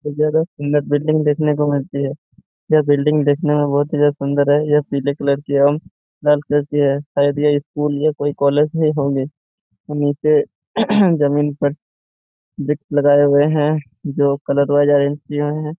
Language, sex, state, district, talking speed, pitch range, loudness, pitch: Hindi, male, Jharkhand, Jamtara, 160 wpm, 145-150 Hz, -17 LUFS, 145 Hz